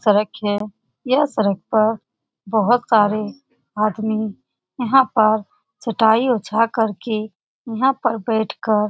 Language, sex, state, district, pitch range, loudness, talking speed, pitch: Hindi, female, Bihar, Saran, 210-240 Hz, -19 LUFS, 120 wpm, 220 Hz